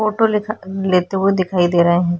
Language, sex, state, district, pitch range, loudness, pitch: Hindi, female, Goa, North and South Goa, 175-210 Hz, -17 LUFS, 190 Hz